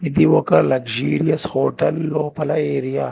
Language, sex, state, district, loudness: Telugu, male, Telangana, Hyderabad, -18 LUFS